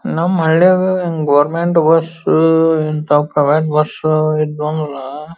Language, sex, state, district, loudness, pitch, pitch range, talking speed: Kannada, female, Karnataka, Belgaum, -14 LUFS, 155 Hz, 150-165 Hz, 100 wpm